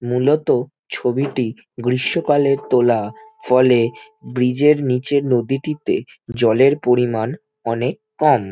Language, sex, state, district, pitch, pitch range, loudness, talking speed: Bengali, male, West Bengal, Jhargram, 130 Hz, 120-145 Hz, -18 LUFS, 100 wpm